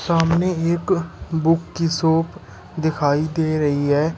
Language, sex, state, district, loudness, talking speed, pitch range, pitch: Hindi, male, Uttar Pradesh, Shamli, -20 LUFS, 130 wpm, 155-170 Hz, 160 Hz